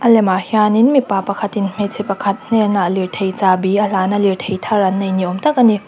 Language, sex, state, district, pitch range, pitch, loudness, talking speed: Mizo, female, Mizoram, Aizawl, 190-215 Hz, 200 Hz, -16 LUFS, 215 wpm